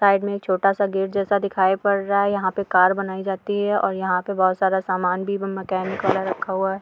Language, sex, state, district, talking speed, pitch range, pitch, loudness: Hindi, female, Uttar Pradesh, Deoria, 245 wpm, 190-200 Hz, 195 Hz, -21 LUFS